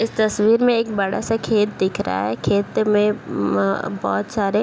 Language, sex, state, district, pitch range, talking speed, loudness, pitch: Hindi, female, Bihar, Bhagalpur, 200-225 Hz, 205 wpm, -20 LUFS, 210 Hz